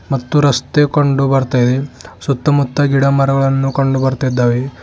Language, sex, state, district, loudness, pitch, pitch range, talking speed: Kannada, male, Karnataka, Bidar, -14 LUFS, 135 Hz, 130-140 Hz, 125 wpm